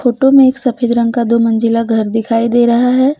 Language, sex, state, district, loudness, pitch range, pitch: Hindi, female, Jharkhand, Deoghar, -12 LUFS, 230-250 Hz, 235 Hz